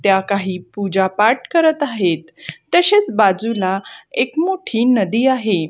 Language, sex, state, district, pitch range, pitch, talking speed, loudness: Marathi, female, Maharashtra, Gondia, 190-265 Hz, 215 Hz, 125 wpm, -17 LUFS